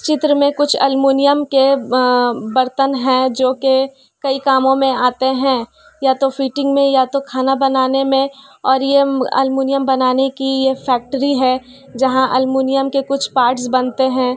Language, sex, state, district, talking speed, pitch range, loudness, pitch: Hindi, female, Bihar, Kishanganj, 160 wpm, 260-275 Hz, -15 LUFS, 265 Hz